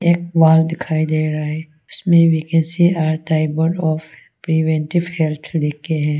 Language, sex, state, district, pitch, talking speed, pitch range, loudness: Hindi, female, Arunachal Pradesh, Longding, 160 Hz, 155 wpm, 155-165 Hz, -17 LUFS